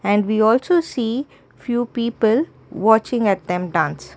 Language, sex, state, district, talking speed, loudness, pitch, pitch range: English, female, Karnataka, Bangalore, 145 wpm, -19 LUFS, 225 Hz, 200-240 Hz